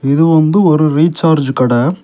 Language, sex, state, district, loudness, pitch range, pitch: Tamil, male, Tamil Nadu, Kanyakumari, -11 LUFS, 140-165 Hz, 155 Hz